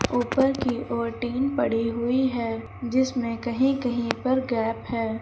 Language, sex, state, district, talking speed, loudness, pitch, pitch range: Hindi, female, Uttar Pradesh, Lucknow, 150 wpm, -25 LUFS, 245 Hz, 230-260 Hz